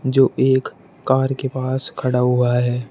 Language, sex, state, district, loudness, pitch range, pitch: Hindi, male, Uttar Pradesh, Shamli, -19 LUFS, 125-130 Hz, 130 Hz